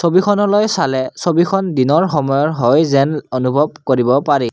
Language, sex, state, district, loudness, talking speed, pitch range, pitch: Assamese, male, Assam, Kamrup Metropolitan, -15 LUFS, 130 wpm, 135-175 Hz, 150 Hz